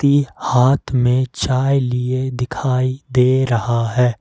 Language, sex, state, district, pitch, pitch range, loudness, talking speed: Hindi, male, Jharkhand, Ranchi, 130 Hz, 125-130 Hz, -17 LUFS, 130 wpm